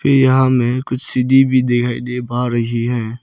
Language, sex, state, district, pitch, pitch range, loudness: Hindi, male, Arunachal Pradesh, Lower Dibang Valley, 125 Hz, 120-130 Hz, -16 LUFS